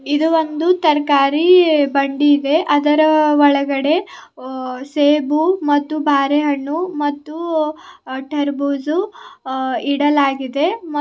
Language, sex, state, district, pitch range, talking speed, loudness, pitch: Kannada, female, Karnataka, Bidar, 280-315 Hz, 110 wpm, -16 LUFS, 295 Hz